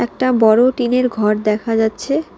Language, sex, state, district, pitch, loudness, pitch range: Bengali, female, West Bengal, Alipurduar, 230 Hz, -15 LUFS, 215-255 Hz